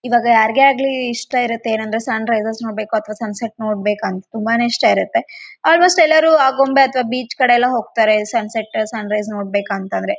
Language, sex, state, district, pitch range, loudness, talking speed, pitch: Kannada, female, Karnataka, Raichur, 215-255 Hz, -16 LUFS, 65 wpm, 230 Hz